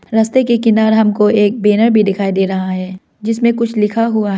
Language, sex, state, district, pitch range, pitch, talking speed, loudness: Hindi, female, Arunachal Pradesh, Lower Dibang Valley, 205-230 Hz, 215 Hz, 205 wpm, -13 LUFS